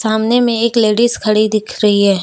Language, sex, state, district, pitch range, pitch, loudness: Hindi, female, Jharkhand, Deoghar, 215-235 Hz, 220 Hz, -13 LUFS